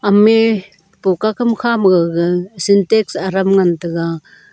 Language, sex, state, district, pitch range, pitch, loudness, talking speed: Wancho, female, Arunachal Pradesh, Longding, 180-215 Hz, 195 Hz, -15 LUFS, 130 wpm